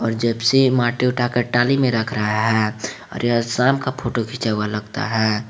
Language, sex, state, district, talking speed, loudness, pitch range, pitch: Hindi, male, Jharkhand, Garhwa, 205 wpm, -19 LUFS, 110-125 Hz, 120 Hz